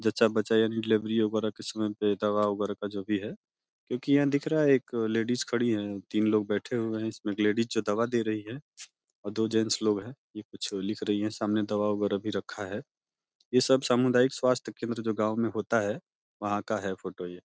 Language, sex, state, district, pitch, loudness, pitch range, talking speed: Hindi, male, Uttar Pradesh, Deoria, 110 Hz, -29 LUFS, 105-115 Hz, 180 wpm